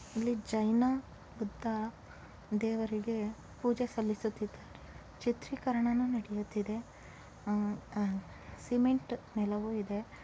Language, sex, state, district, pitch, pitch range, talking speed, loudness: Kannada, female, Karnataka, Chamarajanagar, 220 Hz, 210-240 Hz, 70 wpm, -35 LUFS